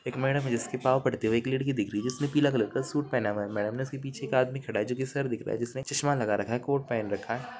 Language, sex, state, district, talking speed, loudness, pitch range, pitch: Hindi, male, Jharkhand, Jamtara, 330 wpm, -29 LUFS, 115-135 Hz, 130 Hz